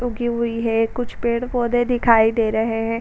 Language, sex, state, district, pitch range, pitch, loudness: Hindi, female, Uttar Pradesh, Budaun, 225-240 Hz, 235 Hz, -20 LUFS